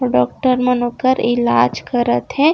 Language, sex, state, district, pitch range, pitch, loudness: Chhattisgarhi, female, Chhattisgarh, Raigarh, 180-255 Hz, 240 Hz, -16 LUFS